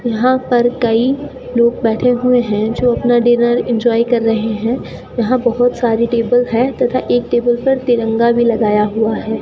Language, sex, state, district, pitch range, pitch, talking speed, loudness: Hindi, female, Rajasthan, Bikaner, 230-245 Hz, 240 Hz, 180 wpm, -14 LUFS